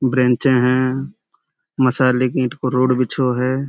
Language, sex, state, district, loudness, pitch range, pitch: Hindi, male, Uttar Pradesh, Budaun, -17 LUFS, 125-130 Hz, 130 Hz